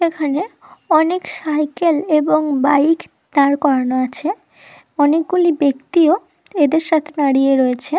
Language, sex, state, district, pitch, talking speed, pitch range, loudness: Bengali, female, West Bengal, Dakshin Dinajpur, 305 Hz, 105 wpm, 285-330 Hz, -16 LUFS